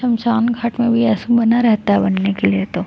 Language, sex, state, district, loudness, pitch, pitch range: Hindi, female, Chhattisgarh, Jashpur, -16 LUFS, 230 Hz, 200-235 Hz